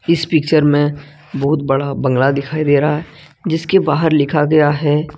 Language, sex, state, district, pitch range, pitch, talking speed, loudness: Hindi, male, Jharkhand, Ranchi, 145-155 Hz, 150 Hz, 175 wpm, -15 LUFS